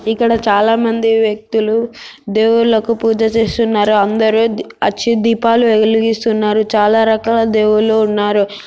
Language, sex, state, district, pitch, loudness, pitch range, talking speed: Telugu, female, Telangana, Nalgonda, 225 Hz, -13 LUFS, 215-230 Hz, 105 wpm